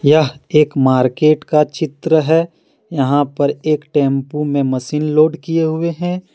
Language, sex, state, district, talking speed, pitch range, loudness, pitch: Hindi, male, Jharkhand, Deoghar, 150 wpm, 140-160 Hz, -16 LUFS, 150 Hz